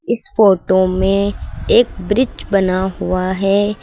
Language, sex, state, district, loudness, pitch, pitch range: Hindi, female, Uttar Pradesh, Lucknow, -15 LUFS, 195 Hz, 185-205 Hz